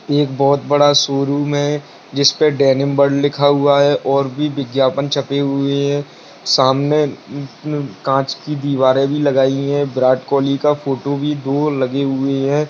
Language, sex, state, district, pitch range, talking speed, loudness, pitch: Hindi, male, Bihar, Bhagalpur, 135-145 Hz, 165 wpm, -16 LUFS, 140 Hz